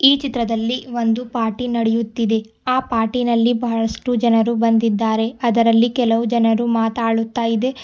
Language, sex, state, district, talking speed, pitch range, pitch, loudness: Kannada, female, Karnataka, Bidar, 115 wpm, 225-240 Hz, 230 Hz, -18 LUFS